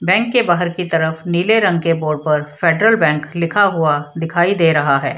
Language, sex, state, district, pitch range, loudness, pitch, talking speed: Hindi, female, Bihar, Samastipur, 155-180 Hz, -15 LUFS, 165 Hz, 210 wpm